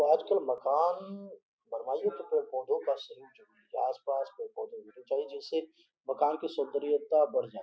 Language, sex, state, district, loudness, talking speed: Hindi, male, Uttar Pradesh, Gorakhpur, -32 LUFS, 155 wpm